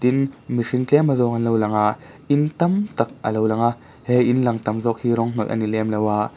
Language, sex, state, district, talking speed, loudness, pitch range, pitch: Mizo, male, Mizoram, Aizawl, 245 wpm, -20 LUFS, 110-130 Hz, 120 Hz